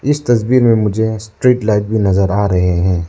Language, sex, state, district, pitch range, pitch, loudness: Hindi, male, Arunachal Pradesh, Lower Dibang Valley, 95-115 Hz, 105 Hz, -14 LUFS